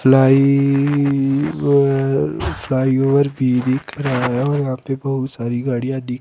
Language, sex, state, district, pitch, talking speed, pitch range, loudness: Hindi, male, Himachal Pradesh, Shimla, 135 Hz, 155 wpm, 125-140 Hz, -17 LUFS